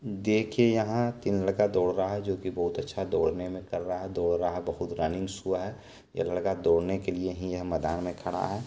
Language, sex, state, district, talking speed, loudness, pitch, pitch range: Maithili, male, Bihar, Supaul, 220 wpm, -29 LUFS, 95 Hz, 90-105 Hz